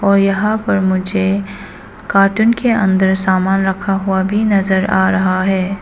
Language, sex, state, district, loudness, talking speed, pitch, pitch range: Hindi, female, Arunachal Pradesh, Papum Pare, -14 LUFS, 155 wpm, 195 Hz, 190-200 Hz